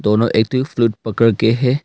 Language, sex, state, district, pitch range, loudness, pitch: Hindi, male, Arunachal Pradesh, Longding, 110-125 Hz, -16 LUFS, 115 Hz